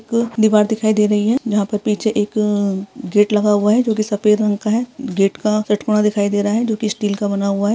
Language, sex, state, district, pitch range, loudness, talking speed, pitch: Hindi, female, Uttarakhand, Uttarkashi, 205-220 Hz, -17 LUFS, 265 wpm, 210 Hz